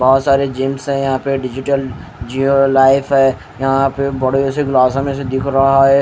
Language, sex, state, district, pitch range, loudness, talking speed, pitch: Hindi, male, Haryana, Rohtak, 130-135 Hz, -15 LUFS, 200 wpm, 135 Hz